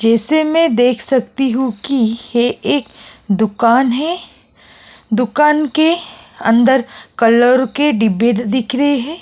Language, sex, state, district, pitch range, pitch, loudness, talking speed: Hindi, female, Uttar Pradesh, Jyotiba Phule Nagar, 230-285 Hz, 250 Hz, -14 LUFS, 125 wpm